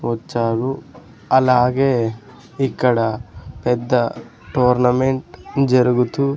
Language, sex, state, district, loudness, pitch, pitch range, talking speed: Telugu, male, Andhra Pradesh, Sri Satya Sai, -18 LUFS, 125 Hz, 115-130 Hz, 55 wpm